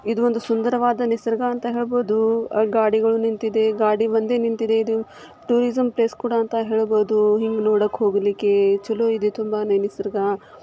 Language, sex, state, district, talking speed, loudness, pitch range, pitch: Kannada, female, Karnataka, Shimoga, 130 wpm, -20 LUFS, 210-230 Hz, 225 Hz